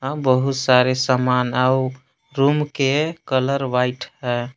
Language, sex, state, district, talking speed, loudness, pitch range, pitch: Hindi, male, Jharkhand, Palamu, 120 wpm, -19 LUFS, 125-135 Hz, 130 Hz